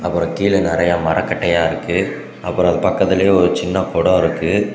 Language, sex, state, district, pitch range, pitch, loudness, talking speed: Tamil, male, Tamil Nadu, Kanyakumari, 85-95 Hz, 90 Hz, -16 LUFS, 150 wpm